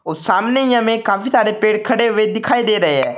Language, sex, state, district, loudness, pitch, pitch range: Hindi, male, Uttar Pradesh, Saharanpur, -15 LUFS, 225 Hz, 215-240 Hz